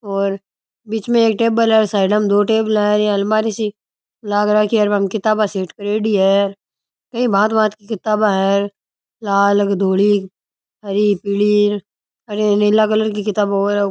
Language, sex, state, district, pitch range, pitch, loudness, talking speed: Rajasthani, male, Rajasthan, Churu, 200-215 Hz, 210 Hz, -16 LUFS, 170 wpm